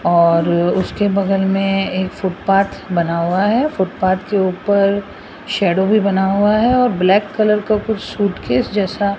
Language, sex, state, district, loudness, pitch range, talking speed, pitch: Hindi, female, Rajasthan, Jaipur, -16 LUFS, 185-205 Hz, 165 wpm, 195 Hz